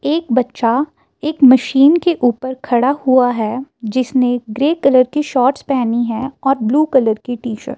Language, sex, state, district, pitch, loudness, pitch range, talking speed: Hindi, female, Himachal Pradesh, Shimla, 260 Hz, -15 LUFS, 245-275 Hz, 175 wpm